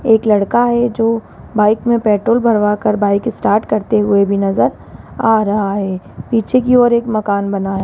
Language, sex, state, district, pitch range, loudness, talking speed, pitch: Hindi, female, Rajasthan, Jaipur, 200-230 Hz, -14 LUFS, 190 wpm, 215 Hz